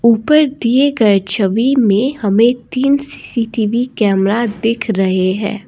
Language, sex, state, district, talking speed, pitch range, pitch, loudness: Hindi, female, Assam, Kamrup Metropolitan, 125 wpm, 205-255 Hz, 225 Hz, -14 LUFS